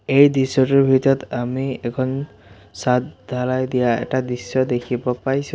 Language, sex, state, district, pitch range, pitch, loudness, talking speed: Assamese, male, Assam, Sonitpur, 125-135 Hz, 130 Hz, -20 LUFS, 130 wpm